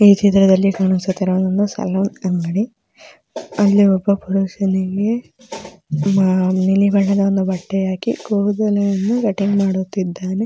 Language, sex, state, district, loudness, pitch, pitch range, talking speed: Kannada, female, Karnataka, Mysore, -17 LUFS, 195 Hz, 185-205 Hz, 90 wpm